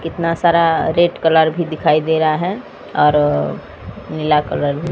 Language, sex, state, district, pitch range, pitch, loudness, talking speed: Hindi, female, Odisha, Sambalpur, 150-165 Hz, 160 Hz, -16 LUFS, 160 wpm